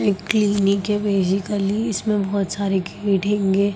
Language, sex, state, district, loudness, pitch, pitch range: Hindi, female, Bihar, Gaya, -20 LUFS, 200 Hz, 195-205 Hz